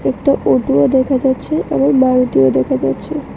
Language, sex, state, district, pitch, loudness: Bengali, female, Tripura, West Tripura, 260 Hz, -14 LUFS